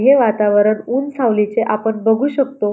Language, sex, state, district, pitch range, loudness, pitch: Marathi, female, Maharashtra, Dhule, 215-270 Hz, -16 LUFS, 225 Hz